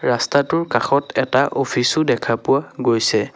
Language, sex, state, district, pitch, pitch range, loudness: Assamese, male, Assam, Sonitpur, 130 Hz, 115-140 Hz, -18 LUFS